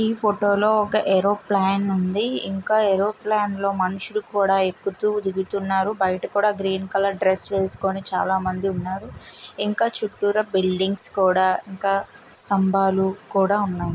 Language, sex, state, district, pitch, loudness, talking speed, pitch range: Telugu, female, Andhra Pradesh, Visakhapatnam, 195 Hz, -22 LUFS, 140 wpm, 190-205 Hz